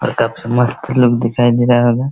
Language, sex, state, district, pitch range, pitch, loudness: Hindi, male, Bihar, Araria, 120-125 Hz, 120 Hz, -14 LUFS